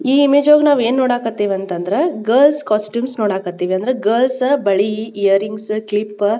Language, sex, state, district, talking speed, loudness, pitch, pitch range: Kannada, female, Karnataka, Bijapur, 150 wpm, -16 LUFS, 215 Hz, 205-255 Hz